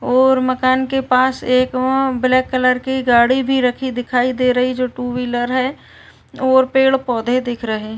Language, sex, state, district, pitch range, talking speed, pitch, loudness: Hindi, female, Uttar Pradesh, Varanasi, 250-260 Hz, 190 wpm, 255 Hz, -16 LUFS